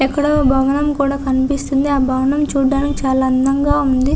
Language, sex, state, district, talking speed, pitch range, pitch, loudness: Telugu, female, Andhra Pradesh, Visakhapatnam, 145 wpm, 265-285 Hz, 275 Hz, -16 LUFS